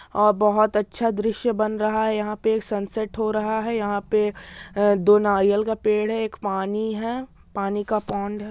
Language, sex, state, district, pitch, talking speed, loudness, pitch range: Maithili, male, Bihar, Supaul, 215 Hz, 195 wpm, -22 LUFS, 205-220 Hz